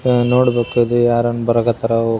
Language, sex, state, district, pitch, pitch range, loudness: Kannada, male, Karnataka, Raichur, 120 Hz, 115-120 Hz, -16 LUFS